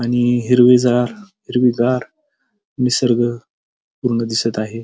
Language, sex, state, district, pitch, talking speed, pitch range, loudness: Marathi, male, Maharashtra, Pune, 125 Hz, 85 wpm, 120-125 Hz, -16 LUFS